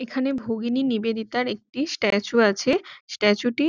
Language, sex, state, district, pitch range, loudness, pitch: Bengali, female, West Bengal, Jhargram, 220-265 Hz, -23 LUFS, 235 Hz